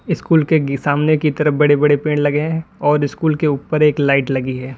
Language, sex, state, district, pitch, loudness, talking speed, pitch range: Hindi, male, Uttar Pradesh, Lalitpur, 150 Hz, -16 LUFS, 225 wpm, 145-155 Hz